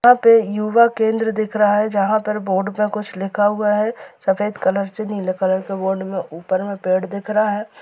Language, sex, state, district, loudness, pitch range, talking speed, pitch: Hindi, female, Bihar, Gopalganj, -19 LUFS, 195-215 Hz, 220 wpm, 210 Hz